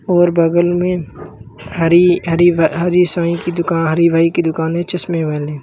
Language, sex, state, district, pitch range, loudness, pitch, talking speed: Hindi, male, Uttar Pradesh, Lalitpur, 165-175 Hz, -14 LUFS, 170 Hz, 180 wpm